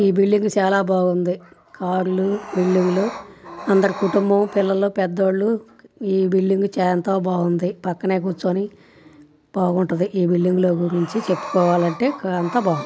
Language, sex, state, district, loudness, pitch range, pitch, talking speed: Telugu, female, Andhra Pradesh, Guntur, -20 LUFS, 180-195 Hz, 185 Hz, 115 wpm